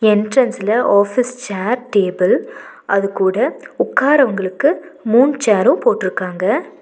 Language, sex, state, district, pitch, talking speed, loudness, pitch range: Tamil, female, Tamil Nadu, Nilgiris, 215 Hz, 90 wpm, -16 LUFS, 195-255 Hz